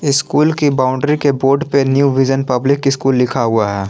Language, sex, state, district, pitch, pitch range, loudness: Hindi, male, Jharkhand, Palamu, 135 Hz, 130-140 Hz, -14 LUFS